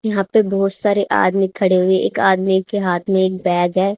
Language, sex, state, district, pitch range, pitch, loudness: Hindi, female, Haryana, Charkhi Dadri, 185-200 Hz, 190 Hz, -17 LUFS